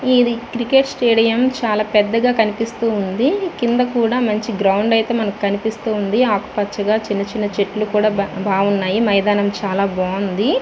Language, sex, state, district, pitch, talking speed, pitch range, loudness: Telugu, female, Andhra Pradesh, Visakhapatnam, 215 Hz, 95 wpm, 200-235 Hz, -17 LUFS